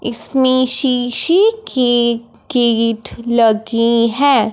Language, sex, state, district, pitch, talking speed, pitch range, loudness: Hindi, female, Punjab, Fazilka, 240 Hz, 80 wpm, 230-260 Hz, -13 LUFS